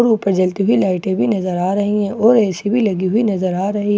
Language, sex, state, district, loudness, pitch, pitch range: Hindi, female, Bihar, Katihar, -16 LUFS, 200 Hz, 185-220 Hz